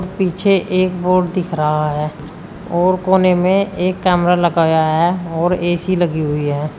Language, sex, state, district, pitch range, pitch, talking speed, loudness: Hindi, female, Uttar Pradesh, Shamli, 160-185 Hz, 180 Hz, 160 wpm, -16 LUFS